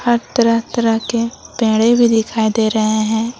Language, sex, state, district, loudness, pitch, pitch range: Hindi, female, Jharkhand, Palamu, -15 LUFS, 230 Hz, 220-235 Hz